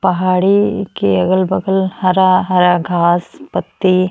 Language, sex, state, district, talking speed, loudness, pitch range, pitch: Bhojpuri, female, Uttar Pradesh, Ghazipur, 115 wpm, -14 LUFS, 180-190 Hz, 185 Hz